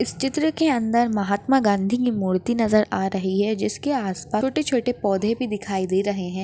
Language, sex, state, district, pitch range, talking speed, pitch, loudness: Hindi, female, Maharashtra, Chandrapur, 195-250 Hz, 195 wpm, 215 Hz, -22 LUFS